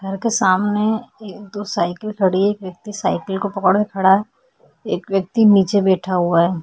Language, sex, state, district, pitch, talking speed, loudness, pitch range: Hindi, female, Uttar Pradesh, Etah, 195 Hz, 200 wpm, -18 LUFS, 185-210 Hz